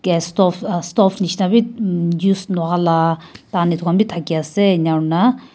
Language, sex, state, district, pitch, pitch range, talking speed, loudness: Nagamese, female, Nagaland, Kohima, 175 Hz, 170-195 Hz, 175 wpm, -17 LUFS